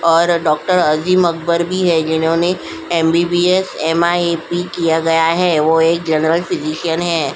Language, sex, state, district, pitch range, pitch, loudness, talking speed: Hindi, female, Uttar Pradesh, Jyotiba Phule Nagar, 160-175 Hz, 170 Hz, -15 LUFS, 140 wpm